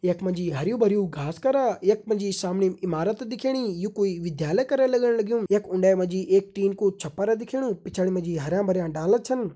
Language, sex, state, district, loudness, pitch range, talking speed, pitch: Hindi, male, Uttarakhand, Uttarkashi, -25 LUFS, 185-220 Hz, 220 wpm, 195 Hz